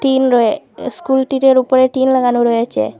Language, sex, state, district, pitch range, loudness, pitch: Bengali, female, Assam, Hailakandi, 240-265 Hz, -13 LUFS, 260 Hz